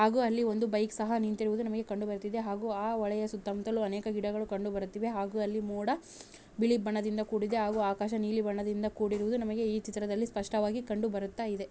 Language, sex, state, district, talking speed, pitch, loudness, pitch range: Kannada, female, Karnataka, Raichur, 185 wpm, 215 Hz, -33 LUFS, 205-225 Hz